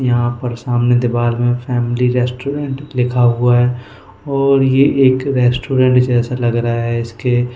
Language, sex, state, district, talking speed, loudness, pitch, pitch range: Hindi, male, Goa, North and South Goa, 150 wpm, -15 LUFS, 125 Hz, 120-130 Hz